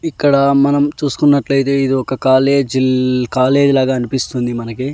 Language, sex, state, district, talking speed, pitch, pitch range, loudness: Telugu, male, Andhra Pradesh, Annamaya, 120 wpm, 135 Hz, 130-140 Hz, -14 LUFS